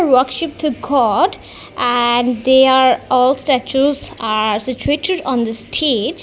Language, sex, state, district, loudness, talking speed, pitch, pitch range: English, female, Punjab, Kapurthala, -15 LUFS, 125 wpm, 260 Hz, 240-285 Hz